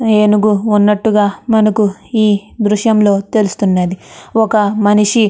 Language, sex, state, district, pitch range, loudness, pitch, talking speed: Telugu, female, Andhra Pradesh, Chittoor, 205-215 Hz, -13 LUFS, 210 Hz, 125 wpm